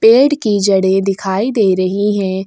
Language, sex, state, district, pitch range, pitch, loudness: Hindi, female, Chhattisgarh, Sukma, 190-220 Hz, 195 Hz, -14 LUFS